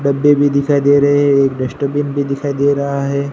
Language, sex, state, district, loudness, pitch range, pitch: Hindi, male, Gujarat, Gandhinagar, -14 LUFS, 140-145 Hz, 140 Hz